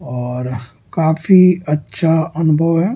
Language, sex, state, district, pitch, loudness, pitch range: Hindi, male, Delhi, New Delhi, 160 Hz, -15 LUFS, 125-165 Hz